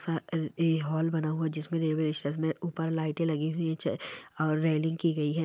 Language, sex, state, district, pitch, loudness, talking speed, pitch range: Hindi, female, Bihar, Darbhanga, 160 Hz, -30 LUFS, 185 wpm, 155-165 Hz